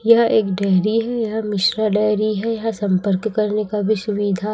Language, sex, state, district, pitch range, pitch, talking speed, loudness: Hindi, female, Chhattisgarh, Raipur, 205-220 Hz, 215 Hz, 185 wpm, -19 LUFS